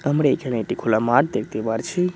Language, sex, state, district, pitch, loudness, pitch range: Bengali, male, West Bengal, Cooch Behar, 145 Hz, -21 LUFS, 110-180 Hz